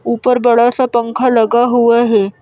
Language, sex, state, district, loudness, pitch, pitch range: Hindi, female, Madhya Pradesh, Bhopal, -12 LUFS, 235 Hz, 230-245 Hz